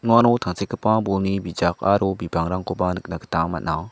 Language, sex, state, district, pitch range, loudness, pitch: Garo, male, Meghalaya, South Garo Hills, 85-110 Hz, -22 LUFS, 95 Hz